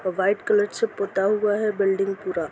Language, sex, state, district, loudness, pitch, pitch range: Hindi, female, Bihar, Darbhanga, -23 LUFS, 200 Hz, 195-210 Hz